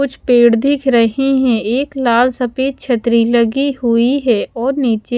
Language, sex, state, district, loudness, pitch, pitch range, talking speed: Hindi, female, Haryana, Charkhi Dadri, -14 LUFS, 245 Hz, 235-270 Hz, 160 wpm